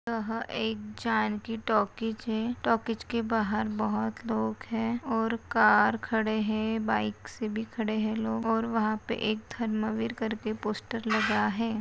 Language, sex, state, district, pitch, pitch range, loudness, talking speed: Hindi, female, Maharashtra, Nagpur, 220 Hz, 215-225 Hz, -29 LUFS, 155 wpm